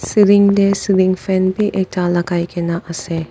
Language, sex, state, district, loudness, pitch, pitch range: Nagamese, female, Nagaland, Dimapur, -16 LUFS, 185 Hz, 175-200 Hz